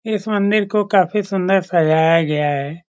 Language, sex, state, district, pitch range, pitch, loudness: Hindi, male, Bihar, Saran, 160-210 Hz, 190 Hz, -17 LUFS